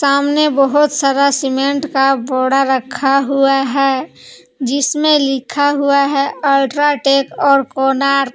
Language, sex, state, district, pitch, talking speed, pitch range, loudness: Hindi, female, Jharkhand, Palamu, 275 Hz, 120 wpm, 270-280 Hz, -14 LUFS